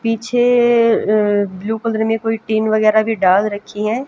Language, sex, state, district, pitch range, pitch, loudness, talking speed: Hindi, female, Haryana, Jhajjar, 210-230 Hz, 220 Hz, -16 LUFS, 175 wpm